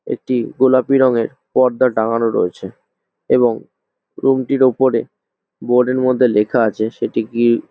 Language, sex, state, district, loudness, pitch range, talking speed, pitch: Bengali, male, West Bengal, Jhargram, -16 LUFS, 115-130 Hz, 115 wpm, 125 Hz